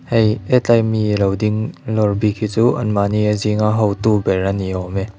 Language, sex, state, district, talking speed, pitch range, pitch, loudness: Mizo, male, Mizoram, Aizawl, 210 wpm, 100-110 Hz, 105 Hz, -17 LUFS